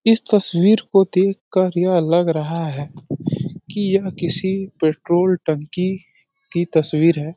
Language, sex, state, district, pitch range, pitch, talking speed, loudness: Hindi, male, Uttar Pradesh, Deoria, 160-195 Hz, 175 Hz, 140 wpm, -18 LUFS